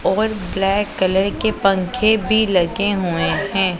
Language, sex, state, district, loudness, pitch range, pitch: Hindi, female, Punjab, Pathankot, -18 LUFS, 185-215 Hz, 195 Hz